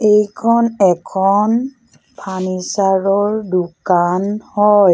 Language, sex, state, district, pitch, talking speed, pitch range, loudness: Assamese, female, Assam, Sonitpur, 200 Hz, 75 wpm, 185-215 Hz, -15 LUFS